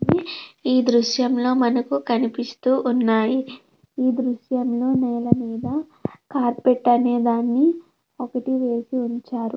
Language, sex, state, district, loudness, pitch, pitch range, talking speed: Telugu, female, Andhra Pradesh, Krishna, -21 LUFS, 250 Hz, 240-260 Hz, 100 wpm